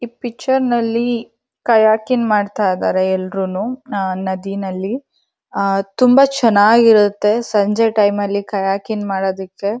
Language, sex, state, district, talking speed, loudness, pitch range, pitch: Kannada, female, Karnataka, Dharwad, 100 wpm, -16 LUFS, 195-235 Hz, 210 Hz